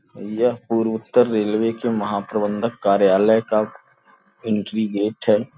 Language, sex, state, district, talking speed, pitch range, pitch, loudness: Hindi, male, Uttar Pradesh, Gorakhpur, 120 wpm, 105-115 Hz, 110 Hz, -20 LUFS